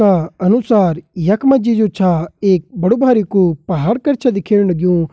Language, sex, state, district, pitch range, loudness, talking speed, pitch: Garhwali, male, Uttarakhand, Uttarkashi, 175-225 Hz, -14 LUFS, 150 wpm, 195 Hz